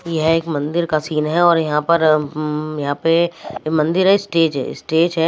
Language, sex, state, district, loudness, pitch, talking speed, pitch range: Hindi, female, Maharashtra, Mumbai Suburban, -17 LUFS, 160 Hz, 215 wpm, 155-170 Hz